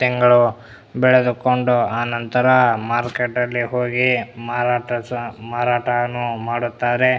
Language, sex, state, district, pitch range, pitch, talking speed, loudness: Kannada, male, Karnataka, Bellary, 120-125 Hz, 120 Hz, 85 wpm, -19 LUFS